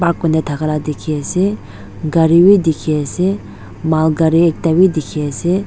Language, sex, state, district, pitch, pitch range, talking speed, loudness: Nagamese, female, Nagaland, Dimapur, 160 Hz, 150-175 Hz, 190 wpm, -15 LUFS